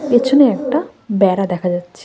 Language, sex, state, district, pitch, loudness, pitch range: Bengali, female, West Bengal, Cooch Behar, 215 Hz, -15 LUFS, 185-275 Hz